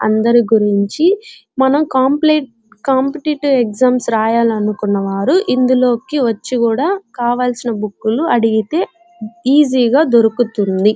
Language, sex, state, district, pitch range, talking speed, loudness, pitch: Telugu, female, Andhra Pradesh, Chittoor, 220-280 Hz, 90 wpm, -14 LUFS, 245 Hz